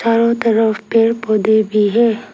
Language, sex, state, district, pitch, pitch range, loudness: Hindi, female, Arunachal Pradesh, Lower Dibang Valley, 225 Hz, 215-230 Hz, -14 LUFS